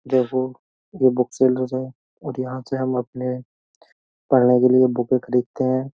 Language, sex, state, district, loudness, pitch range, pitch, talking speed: Hindi, male, Uttar Pradesh, Jyotiba Phule Nagar, -21 LUFS, 125-130 Hz, 130 Hz, 160 wpm